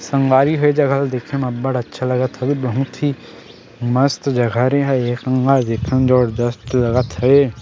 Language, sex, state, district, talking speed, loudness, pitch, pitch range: Chhattisgarhi, male, Chhattisgarh, Sarguja, 205 wpm, -17 LUFS, 130 Hz, 120-135 Hz